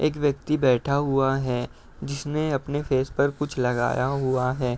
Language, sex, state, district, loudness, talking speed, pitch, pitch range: Hindi, male, Uttar Pradesh, Etah, -24 LUFS, 165 wpm, 140 Hz, 130-145 Hz